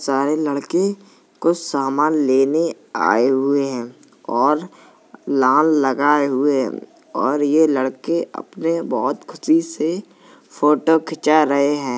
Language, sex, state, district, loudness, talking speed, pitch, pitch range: Hindi, male, Uttar Pradesh, Jalaun, -18 LUFS, 120 wpm, 150 Hz, 135-165 Hz